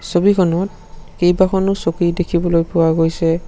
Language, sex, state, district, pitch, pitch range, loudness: Assamese, male, Assam, Sonitpur, 175 Hz, 165-185 Hz, -16 LUFS